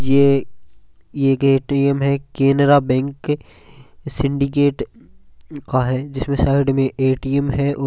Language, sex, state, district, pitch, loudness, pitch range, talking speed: Hindi, male, Rajasthan, Churu, 140 Hz, -18 LUFS, 130-140 Hz, 115 wpm